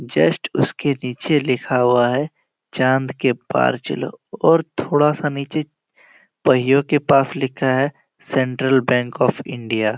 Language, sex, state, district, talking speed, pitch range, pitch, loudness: Hindi, male, Jharkhand, Jamtara, 145 wpm, 125-145 Hz, 135 Hz, -19 LUFS